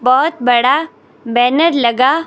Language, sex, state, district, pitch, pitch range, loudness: Hindi, female, Himachal Pradesh, Shimla, 255 Hz, 245-305 Hz, -13 LUFS